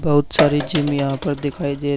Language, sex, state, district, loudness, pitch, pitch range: Hindi, male, Haryana, Charkhi Dadri, -19 LUFS, 145 Hz, 140-145 Hz